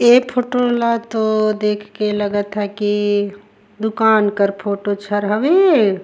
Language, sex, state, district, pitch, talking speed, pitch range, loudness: Surgujia, female, Chhattisgarh, Sarguja, 210 Hz, 140 wpm, 205-225 Hz, -17 LUFS